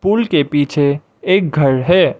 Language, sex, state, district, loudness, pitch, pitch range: Hindi, male, Arunachal Pradesh, Lower Dibang Valley, -15 LUFS, 150 Hz, 140-185 Hz